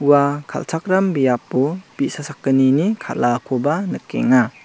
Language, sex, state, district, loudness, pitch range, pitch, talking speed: Garo, male, Meghalaya, South Garo Hills, -19 LUFS, 130-185 Hz, 145 Hz, 90 wpm